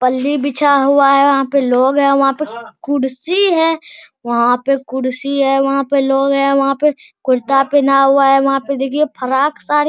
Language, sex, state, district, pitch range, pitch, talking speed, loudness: Hindi, male, Bihar, Araria, 270-285 Hz, 275 Hz, 190 wpm, -14 LUFS